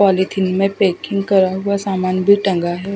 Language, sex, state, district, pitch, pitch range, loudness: Hindi, female, Odisha, Khordha, 195 Hz, 185-200 Hz, -16 LUFS